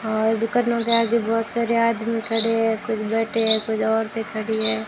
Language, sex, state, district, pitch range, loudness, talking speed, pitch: Hindi, female, Rajasthan, Jaisalmer, 220-230 Hz, -16 LUFS, 195 wpm, 225 Hz